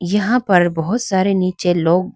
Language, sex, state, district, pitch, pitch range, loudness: Hindi, female, Arunachal Pradesh, Lower Dibang Valley, 185 Hz, 175-205 Hz, -16 LUFS